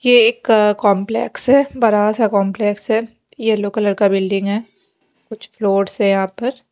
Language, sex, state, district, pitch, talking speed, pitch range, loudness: Hindi, female, Haryana, Jhajjar, 210 Hz, 160 wpm, 200-230 Hz, -16 LUFS